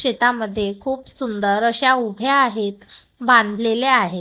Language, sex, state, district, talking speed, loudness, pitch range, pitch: Marathi, female, Maharashtra, Gondia, 115 wpm, -18 LUFS, 210-260 Hz, 235 Hz